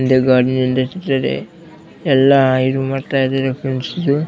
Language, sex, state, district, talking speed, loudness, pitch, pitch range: Kannada, male, Karnataka, Bellary, 85 wpm, -16 LUFS, 135 Hz, 130-135 Hz